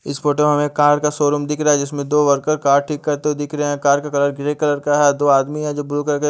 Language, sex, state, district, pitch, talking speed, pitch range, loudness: Hindi, male, Haryana, Charkhi Dadri, 145 Hz, 315 wpm, 145-150 Hz, -17 LUFS